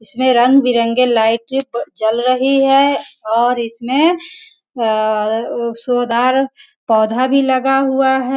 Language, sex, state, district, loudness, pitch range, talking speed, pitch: Hindi, female, Bihar, Sitamarhi, -15 LUFS, 230-270 Hz, 100 wpm, 250 Hz